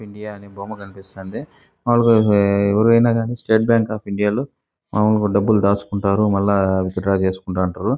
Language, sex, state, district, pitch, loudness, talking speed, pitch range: Telugu, male, Andhra Pradesh, Chittoor, 100 Hz, -18 LUFS, 150 wpm, 100-110 Hz